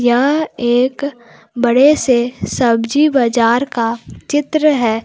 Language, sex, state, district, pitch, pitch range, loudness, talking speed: Hindi, female, Jharkhand, Palamu, 245 Hz, 235-280 Hz, -14 LUFS, 105 wpm